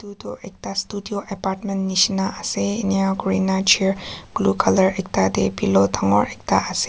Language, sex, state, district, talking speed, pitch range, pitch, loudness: Nagamese, female, Nagaland, Kohima, 150 wpm, 190-200 Hz, 190 Hz, -20 LUFS